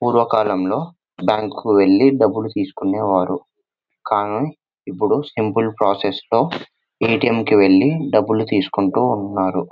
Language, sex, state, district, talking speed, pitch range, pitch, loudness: Telugu, male, Telangana, Nalgonda, 100 wpm, 100-145 Hz, 110 Hz, -18 LUFS